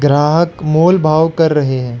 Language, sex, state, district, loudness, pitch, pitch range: Hindi, male, Arunachal Pradesh, Lower Dibang Valley, -12 LUFS, 155 Hz, 145-165 Hz